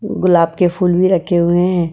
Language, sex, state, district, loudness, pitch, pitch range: Hindi, female, Uttar Pradesh, Budaun, -14 LUFS, 180 Hz, 175-185 Hz